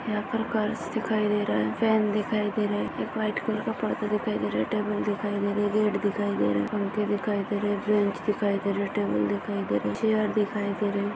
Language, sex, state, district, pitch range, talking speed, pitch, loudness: Hindi, female, Maharashtra, Sindhudurg, 200-210 Hz, 265 wpm, 205 Hz, -27 LUFS